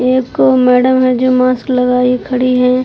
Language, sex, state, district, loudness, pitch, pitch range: Hindi, female, Uttar Pradesh, Deoria, -11 LUFS, 255 Hz, 250-255 Hz